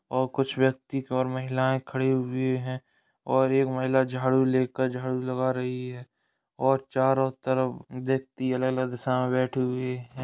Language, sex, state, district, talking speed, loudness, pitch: Hindi, male, Uttar Pradesh, Ghazipur, 160 wpm, -27 LUFS, 130 Hz